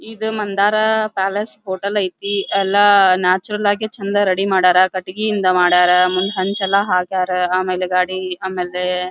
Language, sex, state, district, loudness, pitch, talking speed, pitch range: Kannada, female, Karnataka, Belgaum, -17 LUFS, 190 Hz, 140 wpm, 185-205 Hz